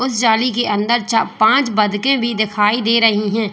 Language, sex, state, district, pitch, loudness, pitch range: Hindi, female, Uttar Pradesh, Lalitpur, 225 Hz, -15 LUFS, 210-240 Hz